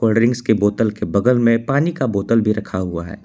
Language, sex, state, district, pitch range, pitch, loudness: Hindi, male, Jharkhand, Palamu, 100-120 Hz, 110 Hz, -18 LUFS